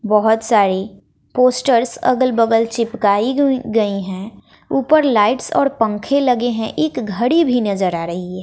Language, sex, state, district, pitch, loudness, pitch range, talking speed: Hindi, female, Bihar, West Champaran, 230 Hz, -16 LUFS, 205-255 Hz, 155 wpm